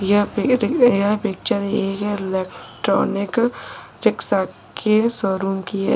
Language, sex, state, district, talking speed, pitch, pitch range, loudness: Hindi, male, Uttar Pradesh, Lalitpur, 100 wpm, 205 Hz, 195-215 Hz, -20 LUFS